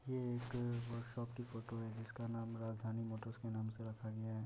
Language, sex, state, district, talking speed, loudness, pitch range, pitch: Hindi, male, Bihar, Muzaffarpur, 230 wpm, -45 LUFS, 110-120 Hz, 115 Hz